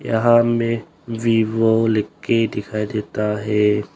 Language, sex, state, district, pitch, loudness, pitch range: Hindi, male, Arunachal Pradesh, Longding, 110 Hz, -19 LUFS, 105-115 Hz